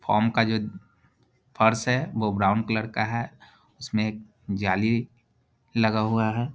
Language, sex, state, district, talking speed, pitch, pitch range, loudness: Hindi, male, Bihar, Jahanabad, 145 wpm, 110 Hz, 110-120 Hz, -25 LUFS